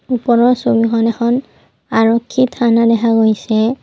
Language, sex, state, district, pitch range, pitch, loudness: Assamese, female, Assam, Kamrup Metropolitan, 225-245 Hz, 230 Hz, -14 LUFS